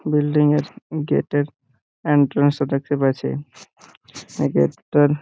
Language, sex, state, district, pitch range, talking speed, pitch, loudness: Bengali, male, West Bengal, Purulia, 130-150 Hz, 125 wpm, 145 Hz, -20 LUFS